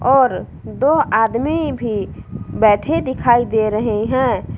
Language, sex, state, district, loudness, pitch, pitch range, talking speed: Hindi, female, Jharkhand, Palamu, -17 LUFS, 240 Hz, 220-270 Hz, 120 wpm